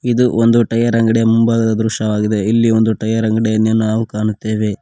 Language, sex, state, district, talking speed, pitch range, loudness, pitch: Kannada, male, Karnataka, Koppal, 160 wpm, 110-115 Hz, -15 LUFS, 110 Hz